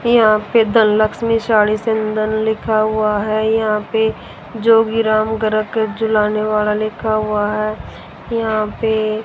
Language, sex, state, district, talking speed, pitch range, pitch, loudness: Hindi, female, Haryana, Rohtak, 130 wpm, 215-220 Hz, 215 Hz, -16 LUFS